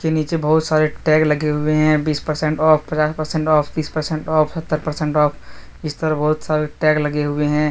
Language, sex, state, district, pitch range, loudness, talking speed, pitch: Hindi, male, Jharkhand, Deoghar, 150-155 Hz, -18 LUFS, 220 wpm, 155 Hz